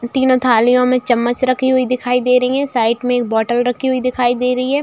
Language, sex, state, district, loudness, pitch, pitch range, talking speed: Hindi, female, Bihar, Saran, -15 LUFS, 250 Hz, 240-255 Hz, 235 wpm